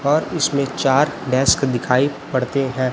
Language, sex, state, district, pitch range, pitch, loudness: Hindi, male, Chhattisgarh, Raipur, 130-140 Hz, 135 Hz, -18 LUFS